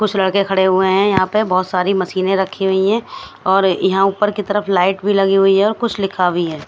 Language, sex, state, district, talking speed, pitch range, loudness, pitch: Hindi, female, Himachal Pradesh, Shimla, 240 wpm, 190-205 Hz, -16 LUFS, 195 Hz